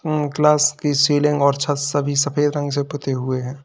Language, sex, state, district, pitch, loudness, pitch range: Hindi, male, Uttar Pradesh, Lalitpur, 145 Hz, -19 LUFS, 140-150 Hz